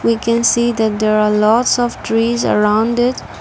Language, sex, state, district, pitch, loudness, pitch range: English, female, Assam, Kamrup Metropolitan, 230 Hz, -14 LUFS, 215-235 Hz